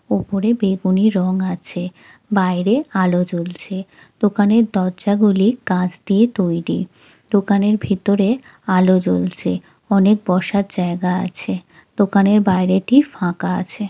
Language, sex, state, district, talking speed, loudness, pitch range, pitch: Bengali, female, West Bengal, Jalpaiguri, 115 wpm, -17 LUFS, 180-205 Hz, 190 Hz